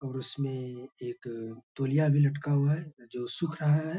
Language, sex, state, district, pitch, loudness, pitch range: Hindi, male, Bihar, Bhagalpur, 135 Hz, -30 LUFS, 125-150 Hz